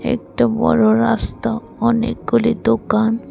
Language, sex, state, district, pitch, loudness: Bengali, female, Tripura, West Tripura, 225 Hz, -17 LUFS